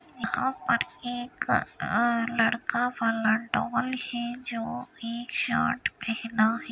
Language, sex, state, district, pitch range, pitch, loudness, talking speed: Hindi, female, Uttar Pradesh, Hamirpur, 230-245 Hz, 235 Hz, -28 LUFS, 115 wpm